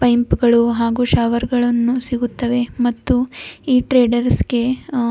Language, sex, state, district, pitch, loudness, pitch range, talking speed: Kannada, female, Karnataka, Bidar, 245 Hz, -17 LUFS, 235-250 Hz, 95 wpm